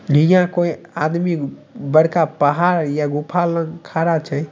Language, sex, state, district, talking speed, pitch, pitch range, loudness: Maithili, male, Bihar, Samastipur, 135 wpm, 165 Hz, 150-175 Hz, -18 LUFS